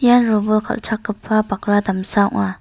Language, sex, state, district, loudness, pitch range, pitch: Garo, female, Meghalaya, North Garo Hills, -18 LUFS, 200-220 Hz, 210 Hz